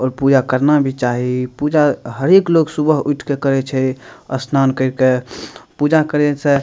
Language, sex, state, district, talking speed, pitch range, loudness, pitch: Maithili, male, Bihar, Madhepura, 190 wpm, 130-150 Hz, -16 LUFS, 135 Hz